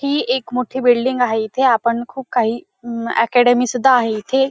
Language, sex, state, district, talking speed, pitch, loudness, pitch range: Marathi, female, Maharashtra, Dhule, 185 wpm, 245 Hz, -17 LUFS, 235-260 Hz